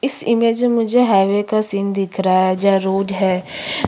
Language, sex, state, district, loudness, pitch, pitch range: Hindi, female, Chhattisgarh, Kabirdham, -17 LUFS, 200 Hz, 195-235 Hz